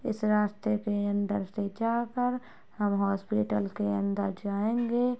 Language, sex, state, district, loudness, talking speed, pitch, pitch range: Hindi, female, Bihar, Muzaffarpur, -30 LUFS, 125 wpm, 205 Hz, 200-230 Hz